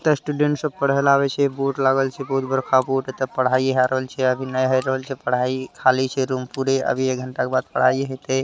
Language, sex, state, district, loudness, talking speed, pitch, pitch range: Hindi, male, Bihar, Araria, -21 LUFS, 255 wpm, 130 Hz, 130-135 Hz